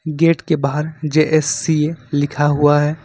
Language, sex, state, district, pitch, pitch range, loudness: Hindi, male, Jharkhand, Ranchi, 150 Hz, 145-160 Hz, -17 LUFS